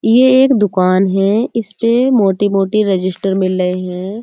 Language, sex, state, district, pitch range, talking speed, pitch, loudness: Hindi, female, Uttar Pradesh, Budaun, 190-230 Hz, 140 wpm, 200 Hz, -13 LUFS